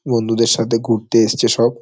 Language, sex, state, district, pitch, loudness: Bengali, male, West Bengal, Paschim Medinipur, 115 Hz, -16 LUFS